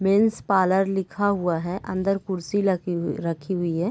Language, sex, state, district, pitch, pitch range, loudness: Hindi, female, Bihar, Sitamarhi, 185 Hz, 175-195 Hz, -24 LUFS